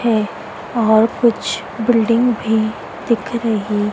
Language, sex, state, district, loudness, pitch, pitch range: Hindi, female, Madhya Pradesh, Dhar, -17 LUFS, 225 Hz, 220-235 Hz